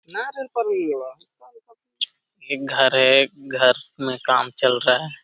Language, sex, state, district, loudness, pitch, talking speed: Hindi, male, Jharkhand, Sahebganj, -20 LUFS, 140 Hz, 105 wpm